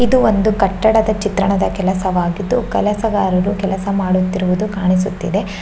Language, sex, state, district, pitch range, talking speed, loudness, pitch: Kannada, female, Karnataka, Shimoga, 190-210 Hz, 95 wpm, -16 LUFS, 195 Hz